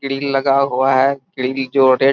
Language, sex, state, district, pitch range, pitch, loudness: Hindi, male, Bihar, Saharsa, 130-135 Hz, 135 Hz, -16 LUFS